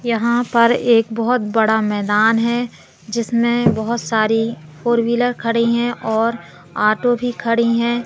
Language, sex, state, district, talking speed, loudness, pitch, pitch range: Hindi, female, Madhya Pradesh, Katni, 140 wpm, -17 LUFS, 230 Hz, 220-235 Hz